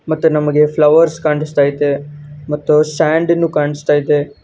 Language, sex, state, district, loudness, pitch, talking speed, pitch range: Kannada, male, Karnataka, Gulbarga, -14 LUFS, 150 Hz, 120 wpm, 145-155 Hz